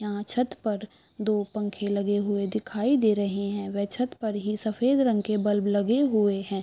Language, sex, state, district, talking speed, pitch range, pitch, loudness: Hindi, female, Chhattisgarh, Bilaspur, 170 wpm, 205-220 Hz, 210 Hz, -26 LUFS